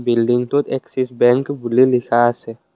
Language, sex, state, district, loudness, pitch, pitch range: Assamese, male, Assam, Kamrup Metropolitan, -17 LUFS, 125 Hz, 120-135 Hz